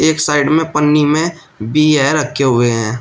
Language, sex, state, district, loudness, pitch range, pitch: Hindi, male, Uttar Pradesh, Shamli, -13 LUFS, 130-155 Hz, 150 Hz